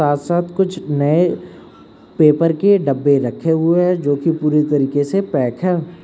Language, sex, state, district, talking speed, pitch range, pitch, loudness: Hindi, male, Uttar Pradesh, Lucknow, 170 wpm, 145-175 Hz, 160 Hz, -16 LUFS